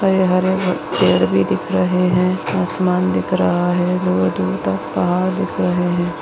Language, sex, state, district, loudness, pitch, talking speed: Hindi, female, Chhattisgarh, Bastar, -17 LUFS, 175 Hz, 155 wpm